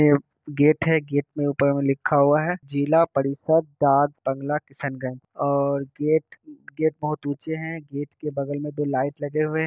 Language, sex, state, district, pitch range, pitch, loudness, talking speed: Hindi, male, Bihar, Kishanganj, 140-155 Hz, 145 Hz, -23 LUFS, 165 wpm